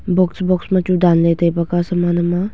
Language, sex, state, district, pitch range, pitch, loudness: Wancho, female, Arunachal Pradesh, Longding, 170-185 Hz, 175 Hz, -16 LUFS